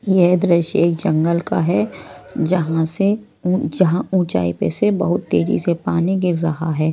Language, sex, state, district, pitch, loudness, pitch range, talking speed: Hindi, male, Odisha, Malkangiri, 170 Hz, -18 LUFS, 160-185 Hz, 175 wpm